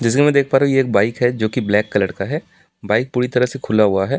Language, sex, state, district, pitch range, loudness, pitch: Hindi, male, Delhi, New Delhi, 105-135 Hz, -17 LUFS, 125 Hz